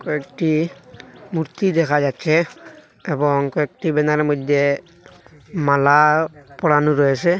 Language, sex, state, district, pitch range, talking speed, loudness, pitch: Bengali, male, Assam, Hailakandi, 145-160 Hz, 90 wpm, -18 LUFS, 150 Hz